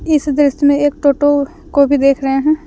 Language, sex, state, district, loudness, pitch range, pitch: Hindi, female, Jharkhand, Deoghar, -13 LUFS, 280-295 Hz, 285 Hz